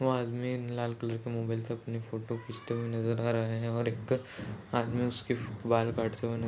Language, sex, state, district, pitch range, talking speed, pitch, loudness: Hindi, male, Goa, North and South Goa, 115-120 Hz, 215 wpm, 115 Hz, -34 LUFS